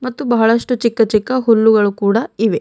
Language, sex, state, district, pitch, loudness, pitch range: Kannada, female, Karnataka, Bidar, 225 Hz, -14 LUFS, 215-240 Hz